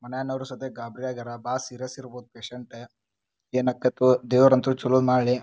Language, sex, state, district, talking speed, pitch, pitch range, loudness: Kannada, male, Karnataka, Dharwad, 120 wpm, 125 Hz, 120-130 Hz, -24 LUFS